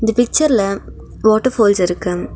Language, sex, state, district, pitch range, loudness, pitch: Tamil, female, Tamil Nadu, Nilgiris, 195-240 Hz, -15 LUFS, 215 Hz